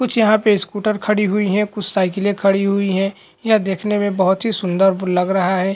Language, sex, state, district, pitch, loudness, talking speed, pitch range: Hindi, male, Chhattisgarh, Bilaspur, 200 Hz, -17 LUFS, 210 wpm, 190-210 Hz